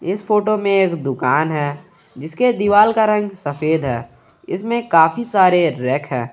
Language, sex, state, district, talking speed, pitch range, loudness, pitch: Hindi, male, Jharkhand, Garhwa, 160 wpm, 145-210 Hz, -17 LUFS, 170 Hz